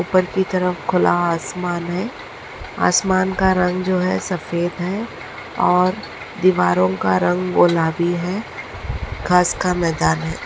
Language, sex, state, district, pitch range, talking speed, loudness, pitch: Hindi, female, Maharashtra, Nagpur, 170-185 Hz, 130 wpm, -19 LUFS, 180 Hz